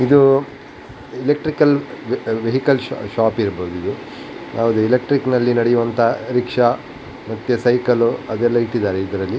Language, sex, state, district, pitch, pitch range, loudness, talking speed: Kannada, male, Karnataka, Dakshina Kannada, 120 Hz, 110-130 Hz, -18 LUFS, 110 wpm